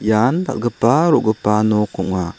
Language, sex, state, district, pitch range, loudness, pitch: Garo, male, Meghalaya, South Garo Hills, 105-120 Hz, -17 LUFS, 110 Hz